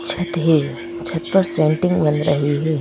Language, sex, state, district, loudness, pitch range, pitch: Hindi, female, Madhya Pradesh, Bhopal, -18 LUFS, 150-170 Hz, 155 Hz